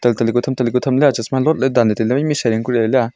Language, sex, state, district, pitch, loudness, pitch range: Wancho, male, Arunachal Pradesh, Longding, 125 Hz, -16 LUFS, 115-130 Hz